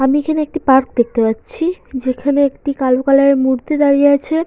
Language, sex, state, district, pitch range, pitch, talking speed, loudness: Bengali, female, West Bengal, Jalpaiguri, 260-300 Hz, 280 Hz, 190 wpm, -15 LUFS